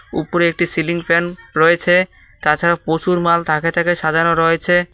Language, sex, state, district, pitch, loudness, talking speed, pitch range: Bengali, male, West Bengal, Cooch Behar, 170 Hz, -16 LUFS, 145 wpm, 165-175 Hz